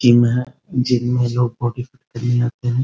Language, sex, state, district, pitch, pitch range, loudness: Hindi, male, Bihar, Muzaffarpur, 125 Hz, 120-125 Hz, -19 LUFS